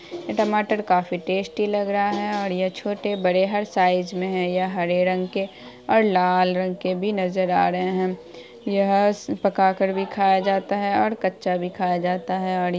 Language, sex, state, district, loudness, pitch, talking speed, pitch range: Hindi, female, Bihar, Araria, -22 LUFS, 185 Hz, 200 wpm, 180-200 Hz